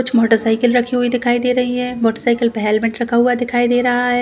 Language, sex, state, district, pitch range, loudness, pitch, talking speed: Hindi, female, Chhattisgarh, Balrampur, 235-245 Hz, -16 LUFS, 245 Hz, 270 wpm